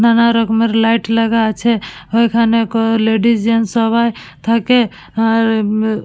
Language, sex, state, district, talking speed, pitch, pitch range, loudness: Bengali, female, West Bengal, Purulia, 110 wpm, 225 Hz, 220-230 Hz, -14 LUFS